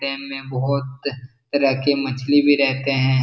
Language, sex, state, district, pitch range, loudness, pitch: Hindi, male, Bihar, Jahanabad, 130-140 Hz, -20 LUFS, 135 Hz